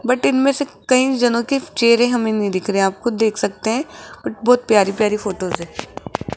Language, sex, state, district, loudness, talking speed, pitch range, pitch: Hindi, female, Rajasthan, Jaipur, -18 LUFS, 200 wpm, 210-255 Hz, 235 Hz